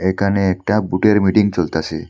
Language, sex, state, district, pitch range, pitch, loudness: Bengali, male, Assam, Hailakandi, 90-100 Hz, 95 Hz, -16 LUFS